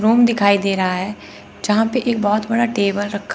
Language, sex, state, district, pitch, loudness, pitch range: Hindi, female, Chandigarh, Chandigarh, 210 Hz, -18 LUFS, 200-230 Hz